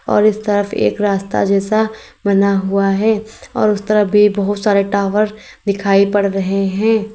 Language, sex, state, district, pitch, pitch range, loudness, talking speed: Hindi, female, Uttar Pradesh, Lalitpur, 205 Hz, 200-215 Hz, -15 LUFS, 165 wpm